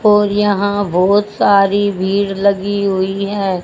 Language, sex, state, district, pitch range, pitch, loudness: Hindi, female, Haryana, Rohtak, 195-205 Hz, 200 Hz, -14 LUFS